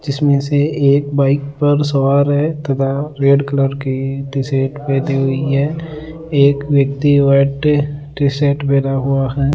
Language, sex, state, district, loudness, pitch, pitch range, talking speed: Hindi, male, Rajasthan, Jaipur, -15 LUFS, 140 Hz, 135-145 Hz, 150 wpm